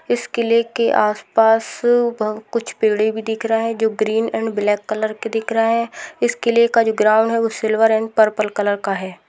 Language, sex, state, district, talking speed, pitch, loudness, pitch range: Hindi, female, Rajasthan, Churu, 195 wpm, 225 Hz, -18 LUFS, 215-230 Hz